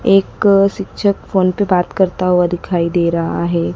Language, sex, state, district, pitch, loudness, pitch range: Hindi, female, Madhya Pradesh, Dhar, 180 Hz, -15 LUFS, 170-195 Hz